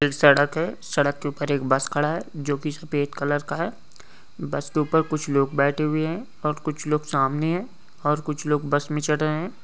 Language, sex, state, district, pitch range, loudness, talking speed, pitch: Hindi, male, Goa, North and South Goa, 145-155 Hz, -24 LUFS, 205 wpm, 150 Hz